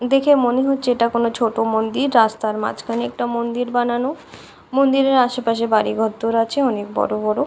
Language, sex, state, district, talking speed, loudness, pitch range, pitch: Bengali, female, West Bengal, Kolkata, 175 wpm, -19 LUFS, 225-260 Hz, 235 Hz